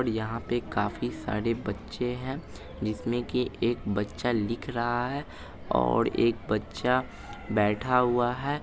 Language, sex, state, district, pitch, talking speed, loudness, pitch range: Hindi, male, Bihar, Madhepura, 115 Hz, 140 wpm, -29 LUFS, 105-125 Hz